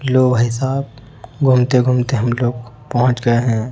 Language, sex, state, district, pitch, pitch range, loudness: Hindi, male, Chhattisgarh, Raipur, 125 Hz, 120-130 Hz, -16 LUFS